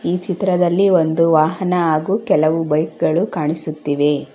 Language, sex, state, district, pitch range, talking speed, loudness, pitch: Kannada, female, Karnataka, Bangalore, 155-180 Hz, 125 wpm, -17 LUFS, 165 Hz